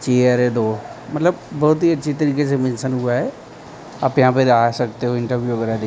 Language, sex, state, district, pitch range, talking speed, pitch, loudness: Hindi, male, Gujarat, Gandhinagar, 120-145 Hz, 215 wpm, 125 Hz, -18 LUFS